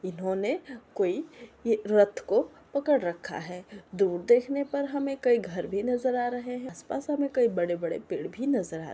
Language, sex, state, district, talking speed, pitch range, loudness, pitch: Hindi, female, Bihar, Araria, 180 wpm, 190-275 Hz, -28 LUFS, 240 Hz